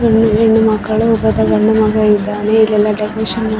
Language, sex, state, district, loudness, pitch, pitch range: Kannada, female, Karnataka, Raichur, -13 LUFS, 215 Hz, 210-220 Hz